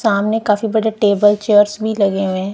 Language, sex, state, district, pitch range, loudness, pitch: Hindi, female, Punjab, Kapurthala, 200-220 Hz, -15 LUFS, 205 Hz